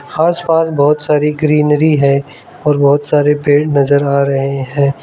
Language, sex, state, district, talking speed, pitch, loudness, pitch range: Hindi, male, Arunachal Pradesh, Lower Dibang Valley, 165 wpm, 145 Hz, -12 LUFS, 140-150 Hz